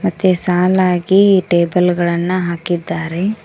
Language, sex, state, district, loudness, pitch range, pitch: Kannada, female, Karnataka, Koppal, -15 LUFS, 175-185 Hz, 180 Hz